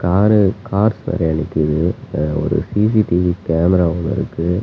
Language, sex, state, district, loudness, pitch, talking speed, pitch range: Tamil, male, Tamil Nadu, Namakkal, -17 LUFS, 90 Hz, 115 wpm, 85-105 Hz